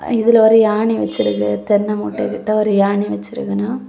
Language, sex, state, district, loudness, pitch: Tamil, female, Tamil Nadu, Kanyakumari, -16 LUFS, 205 Hz